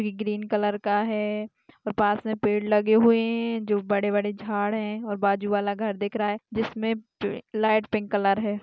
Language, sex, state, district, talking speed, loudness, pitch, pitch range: Hindi, female, Maharashtra, Aurangabad, 190 wpm, -25 LUFS, 210 Hz, 205-220 Hz